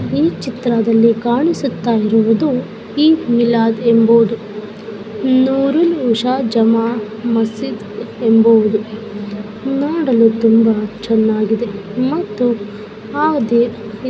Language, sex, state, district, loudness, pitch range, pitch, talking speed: Kannada, female, Karnataka, Dakshina Kannada, -15 LUFS, 220-250 Hz, 230 Hz, 70 wpm